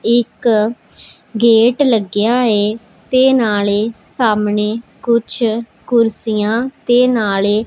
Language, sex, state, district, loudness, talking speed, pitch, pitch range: Punjabi, female, Punjab, Pathankot, -15 LUFS, 95 wpm, 225 Hz, 210-240 Hz